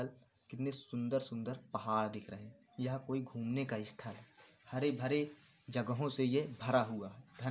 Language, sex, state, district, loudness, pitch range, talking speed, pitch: Hindi, male, Uttar Pradesh, Varanasi, -39 LUFS, 115-135 Hz, 175 wpm, 130 Hz